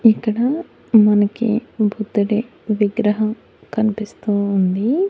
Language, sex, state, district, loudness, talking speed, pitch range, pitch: Telugu, female, Andhra Pradesh, Annamaya, -18 LUFS, 70 wpm, 210-230 Hz, 215 Hz